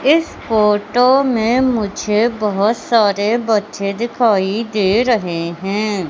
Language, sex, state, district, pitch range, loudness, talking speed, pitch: Hindi, male, Madhya Pradesh, Katni, 200-235 Hz, -16 LUFS, 110 wpm, 215 Hz